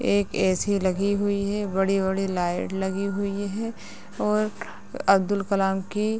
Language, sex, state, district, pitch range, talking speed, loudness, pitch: Hindi, female, Bihar, Madhepura, 190-205 Hz, 145 wpm, -25 LUFS, 200 Hz